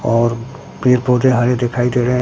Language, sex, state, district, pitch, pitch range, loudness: Hindi, male, Bihar, Katihar, 125 Hz, 120-125 Hz, -15 LUFS